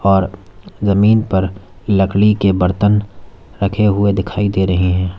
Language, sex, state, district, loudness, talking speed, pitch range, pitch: Hindi, male, Uttar Pradesh, Lalitpur, -15 LUFS, 140 wpm, 95-100 Hz, 95 Hz